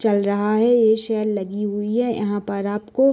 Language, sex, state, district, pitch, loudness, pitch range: Hindi, female, Bihar, Darbhanga, 210 Hz, -20 LUFS, 205-225 Hz